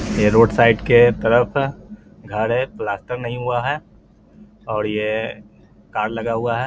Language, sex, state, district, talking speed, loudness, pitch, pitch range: Hindi, male, Bihar, Lakhisarai, 170 wpm, -19 LUFS, 115 Hz, 110-125 Hz